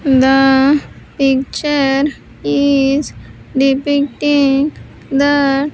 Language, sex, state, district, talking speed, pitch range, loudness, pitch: English, female, Andhra Pradesh, Sri Satya Sai, 50 wpm, 270-285 Hz, -14 LUFS, 275 Hz